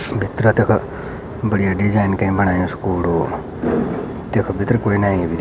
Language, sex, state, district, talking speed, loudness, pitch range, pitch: Garhwali, male, Uttarakhand, Uttarkashi, 145 wpm, -18 LUFS, 95-110 Hz, 100 Hz